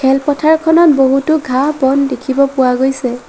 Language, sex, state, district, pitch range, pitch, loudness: Assamese, female, Assam, Sonitpur, 265-300 Hz, 270 Hz, -12 LUFS